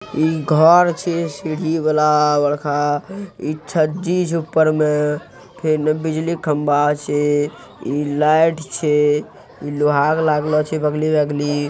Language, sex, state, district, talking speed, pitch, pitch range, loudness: Hindi, male, Bihar, Araria, 125 wpm, 155 Hz, 145-160 Hz, -18 LUFS